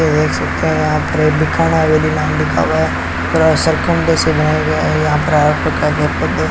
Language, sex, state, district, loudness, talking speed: Hindi, male, Rajasthan, Bikaner, -14 LUFS, 175 wpm